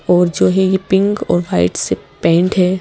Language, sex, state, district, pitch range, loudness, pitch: Hindi, female, Madhya Pradesh, Bhopal, 175-190 Hz, -15 LUFS, 185 Hz